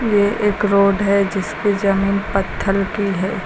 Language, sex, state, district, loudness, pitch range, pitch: Hindi, female, Uttar Pradesh, Lucknow, -18 LUFS, 195-205 Hz, 200 Hz